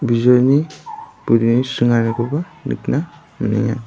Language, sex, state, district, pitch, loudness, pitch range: Garo, male, Meghalaya, West Garo Hills, 125 Hz, -17 LUFS, 115-155 Hz